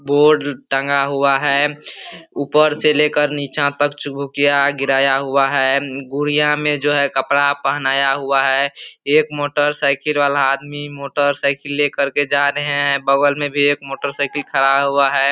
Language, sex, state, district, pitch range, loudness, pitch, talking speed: Hindi, male, Bihar, Supaul, 140-145 Hz, -16 LUFS, 140 Hz, 170 wpm